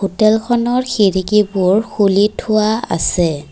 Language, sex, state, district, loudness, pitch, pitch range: Assamese, female, Assam, Kamrup Metropolitan, -15 LUFS, 210 Hz, 195-220 Hz